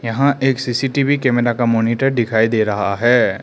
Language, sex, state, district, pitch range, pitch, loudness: Hindi, male, Arunachal Pradesh, Lower Dibang Valley, 115-135 Hz, 120 Hz, -16 LUFS